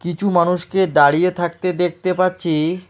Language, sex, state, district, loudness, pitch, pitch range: Bengali, male, West Bengal, Alipurduar, -17 LUFS, 180 Hz, 170-185 Hz